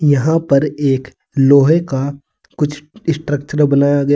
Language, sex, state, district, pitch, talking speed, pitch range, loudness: Hindi, male, Uttar Pradesh, Saharanpur, 145 Hz, 130 wpm, 140-150 Hz, -15 LUFS